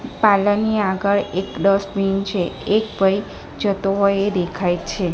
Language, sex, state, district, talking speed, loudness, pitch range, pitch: Gujarati, female, Gujarat, Gandhinagar, 150 wpm, -19 LUFS, 195-205 Hz, 195 Hz